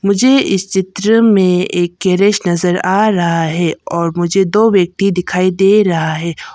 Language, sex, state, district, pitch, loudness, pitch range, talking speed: Hindi, female, Arunachal Pradesh, Papum Pare, 185 Hz, -13 LUFS, 175-200 Hz, 165 wpm